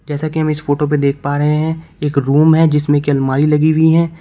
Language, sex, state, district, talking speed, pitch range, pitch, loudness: Hindi, male, Uttar Pradesh, Shamli, 270 wpm, 145-155 Hz, 150 Hz, -14 LUFS